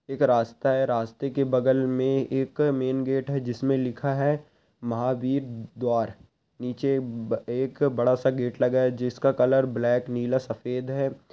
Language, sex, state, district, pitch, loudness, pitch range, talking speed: Hindi, male, Rajasthan, Nagaur, 130 Hz, -26 LUFS, 120-135 Hz, 165 wpm